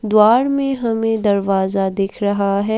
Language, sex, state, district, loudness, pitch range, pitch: Hindi, female, Assam, Kamrup Metropolitan, -17 LUFS, 200-225 Hz, 210 Hz